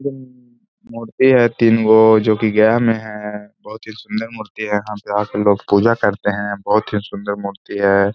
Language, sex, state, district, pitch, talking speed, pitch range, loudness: Hindi, male, Bihar, Gaya, 110 Hz, 185 wpm, 105-115 Hz, -16 LUFS